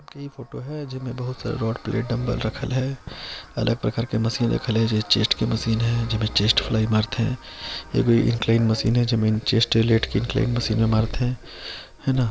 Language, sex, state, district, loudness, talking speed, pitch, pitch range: Chhattisgarhi, male, Chhattisgarh, Sarguja, -23 LUFS, 185 wpm, 115 Hz, 110-125 Hz